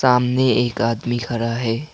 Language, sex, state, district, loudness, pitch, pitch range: Hindi, male, Assam, Kamrup Metropolitan, -20 LUFS, 120 Hz, 115-125 Hz